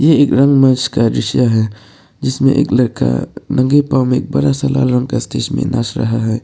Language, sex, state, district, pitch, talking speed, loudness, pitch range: Hindi, male, Arunachal Pradesh, Papum Pare, 130 Hz, 205 wpm, -14 LUFS, 115-135 Hz